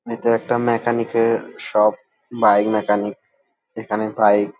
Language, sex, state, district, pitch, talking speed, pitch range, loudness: Bengali, male, West Bengal, Dakshin Dinajpur, 110 Hz, 115 wpm, 105-115 Hz, -19 LUFS